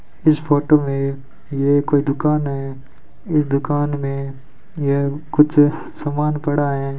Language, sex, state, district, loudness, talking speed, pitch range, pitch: Hindi, male, Rajasthan, Bikaner, -19 LUFS, 130 wpm, 140-150 Hz, 145 Hz